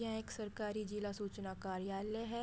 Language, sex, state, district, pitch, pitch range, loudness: Hindi, female, Uttar Pradesh, Budaun, 210 Hz, 195-220 Hz, -43 LUFS